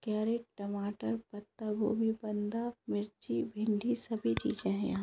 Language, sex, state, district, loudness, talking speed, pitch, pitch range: Hindi, female, Bihar, Jahanabad, -35 LUFS, 145 wpm, 215 Hz, 205-225 Hz